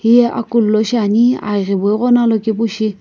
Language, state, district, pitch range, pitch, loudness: Sumi, Nagaland, Kohima, 215-235 Hz, 225 Hz, -14 LUFS